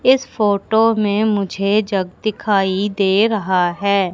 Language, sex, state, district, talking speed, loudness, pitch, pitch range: Hindi, female, Madhya Pradesh, Katni, 130 wpm, -17 LUFS, 205 Hz, 195-215 Hz